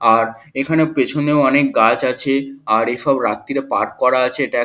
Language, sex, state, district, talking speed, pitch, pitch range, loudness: Bengali, male, West Bengal, Kolkata, 180 wpm, 135 Hz, 120-145 Hz, -17 LUFS